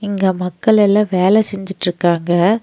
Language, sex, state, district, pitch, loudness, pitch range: Tamil, female, Tamil Nadu, Nilgiris, 195 Hz, -15 LUFS, 180-210 Hz